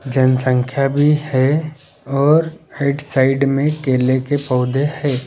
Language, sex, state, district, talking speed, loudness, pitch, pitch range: Hindi, male, Madhya Pradesh, Bhopal, 125 wpm, -17 LUFS, 140 Hz, 130-145 Hz